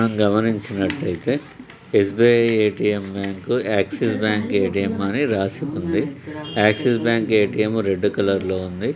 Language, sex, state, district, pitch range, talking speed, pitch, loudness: Telugu, male, Telangana, Nalgonda, 100-115 Hz, 120 wpm, 105 Hz, -20 LUFS